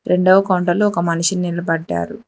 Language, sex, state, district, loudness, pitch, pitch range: Telugu, female, Telangana, Hyderabad, -17 LUFS, 175 Hz, 170-190 Hz